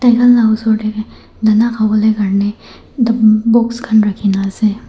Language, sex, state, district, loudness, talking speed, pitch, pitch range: Nagamese, male, Nagaland, Dimapur, -13 LUFS, 145 wpm, 220 Hz, 215-230 Hz